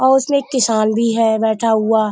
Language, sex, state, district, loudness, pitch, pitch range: Hindi, female, Uttar Pradesh, Budaun, -15 LUFS, 225 Hz, 220-260 Hz